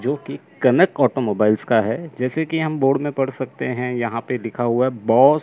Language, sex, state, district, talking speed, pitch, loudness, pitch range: Hindi, male, Chandigarh, Chandigarh, 210 wpm, 125 Hz, -20 LUFS, 115-135 Hz